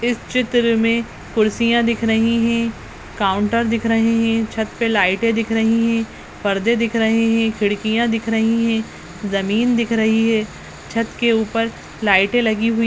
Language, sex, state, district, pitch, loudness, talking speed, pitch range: Hindi, female, Uttarakhand, Tehri Garhwal, 225 Hz, -18 LUFS, 170 wpm, 220-230 Hz